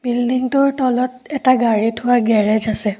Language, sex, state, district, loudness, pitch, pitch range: Assamese, female, Assam, Kamrup Metropolitan, -17 LUFS, 245 Hz, 220-255 Hz